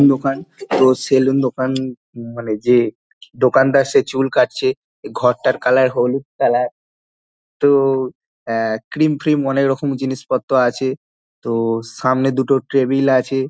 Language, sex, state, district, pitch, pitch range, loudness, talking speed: Bengali, male, West Bengal, Dakshin Dinajpur, 130 Hz, 125-135 Hz, -17 LUFS, 120 wpm